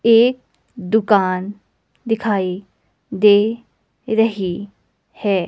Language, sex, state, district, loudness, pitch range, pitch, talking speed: Hindi, female, Himachal Pradesh, Shimla, -18 LUFS, 195-225 Hz, 205 Hz, 65 wpm